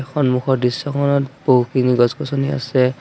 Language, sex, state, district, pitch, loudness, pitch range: Assamese, male, Assam, Sonitpur, 135 Hz, -18 LUFS, 125-140 Hz